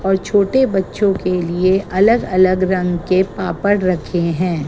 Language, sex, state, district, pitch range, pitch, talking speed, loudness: Hindi, female, Gujarat, Gandhinagar, 180-195 Hz, 185 Hz, 155 wpm, -16 LUFS